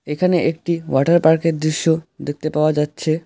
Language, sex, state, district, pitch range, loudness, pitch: Bengali, male, West Bengal, Alipurduar, 150-165 Hz, -18 LUFS, 160 Hz